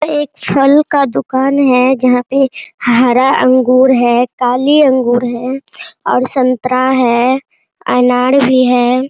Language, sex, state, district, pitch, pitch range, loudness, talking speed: Hindi, female, Bihar, Araria, 255 Hz, 250-275 Hz, -11 LUFS, 130 wpm